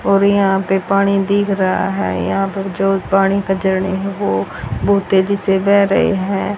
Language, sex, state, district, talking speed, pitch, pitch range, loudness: Hindi, female, Haryana, Rohtak, 180 wpm, 195 Hz, 190-200 Hz, -16 LUFS